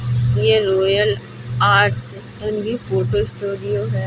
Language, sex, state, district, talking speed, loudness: Hindi, female, Uttar Pradesh, Budaun, 90 wpm, -18 LUFS